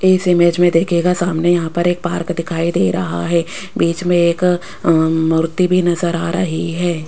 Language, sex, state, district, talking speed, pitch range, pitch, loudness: Hindi, female, Rajasthan, Jaipur, 195 wpm, 165-175 Hz, 170 Hz, -16 LUFS